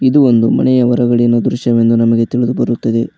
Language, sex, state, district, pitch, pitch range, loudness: Kannada, male, Karnataka, Koppal, 120 Hz, 115-125 Hz, -12 LUFS